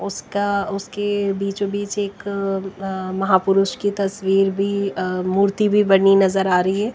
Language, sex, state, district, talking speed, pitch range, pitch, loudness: Hindi, female, Bihar, West Champaran, 155 wpm, 195-200 Hz, 195 Hz, -20 LUFS